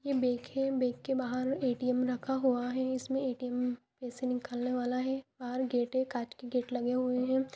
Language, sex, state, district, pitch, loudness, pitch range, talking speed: Hindi, female, Jharkhand, Jamtara, 255 Hz, -33 LUFS, 245-260 Hz, 190 wpm